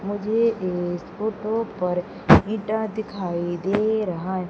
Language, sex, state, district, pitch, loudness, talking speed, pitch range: Hindi, female, Madhya Pradesh, Umaria, 205 Hz, -23 LUFS, 120 wpm, 180-220 Hz